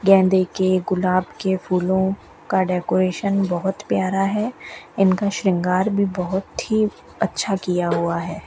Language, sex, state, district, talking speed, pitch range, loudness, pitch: Hindi, female, Rajasthan, Bikaner, 135 wpm, 185-195 Hz, -21 LUFS, 190 Hz